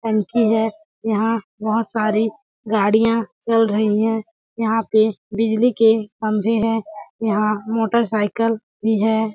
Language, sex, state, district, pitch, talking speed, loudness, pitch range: Hindi, female, Chhattisgarh, Balrampur, 220 Hz, 120 wpm, -19 LUFS, 215-225 Hz